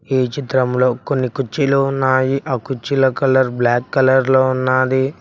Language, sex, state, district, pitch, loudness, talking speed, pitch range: Telugu, male, Telangana, Mahabubabad, 130 Hz, -16 LUFS, 150 wpm, 130-135 Hz